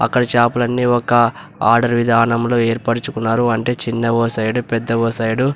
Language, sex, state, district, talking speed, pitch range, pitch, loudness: Telugu, male, Andhra Pradesh, Anantapur, 160 wpm, 115-120 Hz, 115 Hz, -16 LUFS